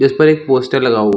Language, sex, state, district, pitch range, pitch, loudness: Hindi, male, Chhattisgarh, Bilaspur, 125-145 Hz, 135 Hz, -13 LUFS